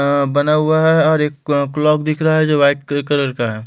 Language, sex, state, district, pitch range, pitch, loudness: Hindi, male, Delhi, New Delhi, 140-155 Hz, 145 Hz, -15 LUFS